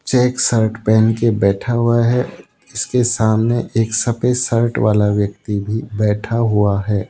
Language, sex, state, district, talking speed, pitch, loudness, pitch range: Hindi, male, Rajasthan, Jaipur, 150 wpm, 115 Hz, -16 LUFS, 105-120 Hz